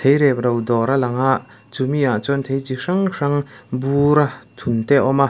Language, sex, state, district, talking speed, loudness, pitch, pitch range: Mizo, male, Mizoram, Aizawl, 225 wpm, -19 LUFS, 135 Hz, 125-140 Hz